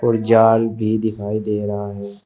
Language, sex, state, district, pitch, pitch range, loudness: Hindi, male, Uttar Pradesh, Shamli, 110 Hz, 105-110 Hz, -18 LUFS